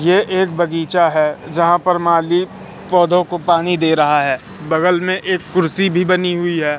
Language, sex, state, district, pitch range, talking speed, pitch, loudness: Hindi, male, Madhya Pradesh, Katni, 165-185 Hz, 185 wpm, 175 Hz, -15 LUFS